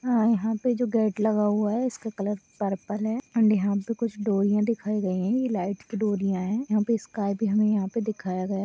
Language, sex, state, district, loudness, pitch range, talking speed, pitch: Hindi, female, Bihar, Purnia, -26 LUFS, 200-225 Hz, 235 wpm, 210 Hz